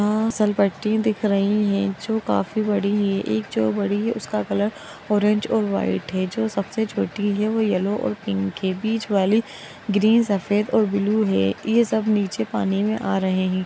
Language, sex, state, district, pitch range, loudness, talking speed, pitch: Magahi, female, Bihar, Gaya, 185-215 Hz, -22 LUFS, 185 wpm, 205 Hz